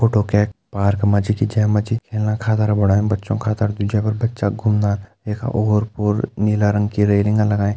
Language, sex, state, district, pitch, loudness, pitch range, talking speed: Hindi, male, Uttarakhand, Uttarkashi, 105 Hz, -19 LUFS, 105-110 Hz, 185 wpm